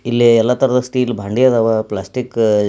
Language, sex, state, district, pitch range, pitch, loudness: Kannada, male, Karnataka, Belgaum, 110-125 Hz, 120 Hz, -15 LUFS